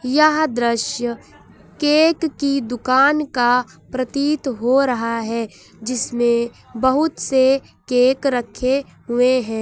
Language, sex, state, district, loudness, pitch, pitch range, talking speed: Hindi, female, Uttar Pradesh, Lucknow, -19 LUFS, 255 Hz, 240-275 Hz, 105 wpm